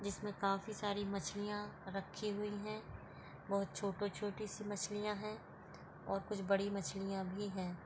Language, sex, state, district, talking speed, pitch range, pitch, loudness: Hindi, female, Rajasthan, Nagaur, 155 wpm, 195-210 Hz, 205 Hz, -42 LUFS